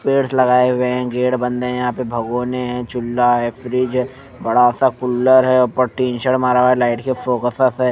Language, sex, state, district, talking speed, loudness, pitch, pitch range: Hindi, male, Punjab, Fazilka, 205 wpm, -17 LUFS, 125 Hz, 125-130 Hz